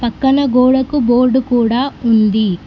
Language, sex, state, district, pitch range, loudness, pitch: Telugu, female, Telangana, Mahabubabad, 230-265 Hz, -13 LUFS, 250 Hz